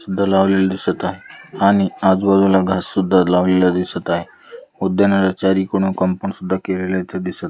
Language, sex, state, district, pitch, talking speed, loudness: Marathi, male, Maharashtra, Dhule, 95 Hz, 145 wpm, -17 LUFS